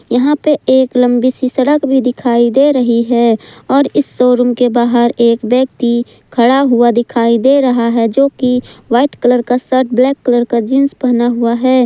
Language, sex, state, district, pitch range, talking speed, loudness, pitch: Hindi, female, Jharkhand, Ranchi, 235-260 Hz, 185 wpm, -12 LUFS, 245 Hz